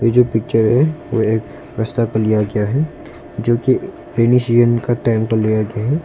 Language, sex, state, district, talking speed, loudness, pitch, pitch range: Hindi, male, Arunachal Pradesh, Longding, 190 wpm, -17 LUFS, 115 Hz, 110-125 Hz